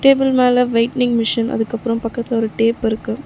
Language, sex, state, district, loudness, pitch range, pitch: Tamil, female, Tamil Nadu, Chennai, -17 LUFS, 230-250 Hz, 230 Hz